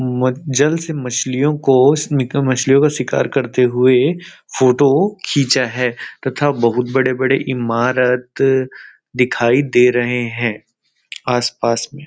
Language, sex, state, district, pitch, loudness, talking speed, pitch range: Hindi, male, Chhattisgarh, Rajnandgaon, 130 Hz, -16 LUFS, 135 wpm, 125-140 Hz